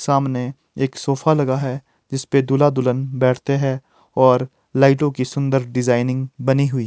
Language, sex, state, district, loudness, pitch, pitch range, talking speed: Hindi, male, Himachal Pradesh, Shimla, -19 LUFS, 135 Hz, 130-140 Hz, 155 wpm